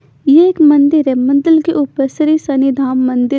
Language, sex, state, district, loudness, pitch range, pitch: Hindi, female, Chandigarh, Chandigarh, -11 LUFS, 270-310 Hz, 280 Hz